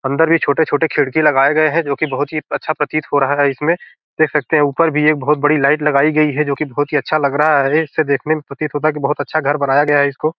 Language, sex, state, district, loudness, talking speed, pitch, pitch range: Hindi, male, Bihar, Gopalganj, -15 LUFS, 295 wpm, 150 Hz, 145-155 Hz